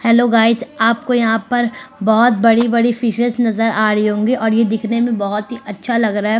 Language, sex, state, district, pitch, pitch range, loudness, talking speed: Hindi, female, Bihar, Sitamarhi, 230 Hz, 220-240 Hz, -15 LUFS, 205 wpm